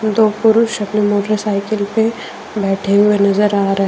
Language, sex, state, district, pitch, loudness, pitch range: Hindi, female, Jharkhand, Deoghar, 210 Hz, -15 LUFS, 200-220 Hz